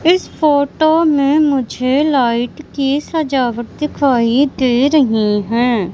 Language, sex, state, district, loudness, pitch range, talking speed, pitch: Hindi, female, Madhya Pradesh, Katni, -14 LUFS, 240-300 Hz, 110 wpm, 275 Hz